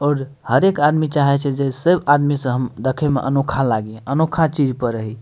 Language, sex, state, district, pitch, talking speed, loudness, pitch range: Maithili, male, Bihar, Madhepura, 140 Hz, 205 wpm, -18 LUFS, 130-145 Hz